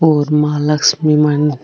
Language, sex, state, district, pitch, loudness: Marwari, female, Rajasthan, Nagaur, 150 Hz, -13 LUFS